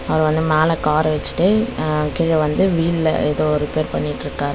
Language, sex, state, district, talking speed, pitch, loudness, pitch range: Tamil, female, Tamil Nadu, Chennai, 160 wpm, 155 Hz, -18 LUFS, 150-165 Hz